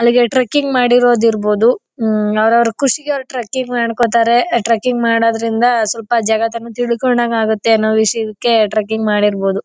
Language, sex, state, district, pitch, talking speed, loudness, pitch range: Kannada, female, Karnataka, Chamarajanagar, 230 Hz, 110 wpm, -14 LUFS, 220-245 Hz